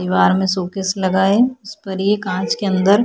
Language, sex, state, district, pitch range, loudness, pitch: Hindi, female, Chhattisgarh, Kabirdham, 185-205 Hz, -17 LUFS, 195 Hz